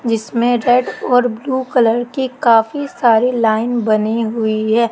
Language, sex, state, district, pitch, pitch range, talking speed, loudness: Hindi, female, Madhya Pradesh, Katni, 235 Hz, 225-245 Hz, 145 wpm, -15 LUFS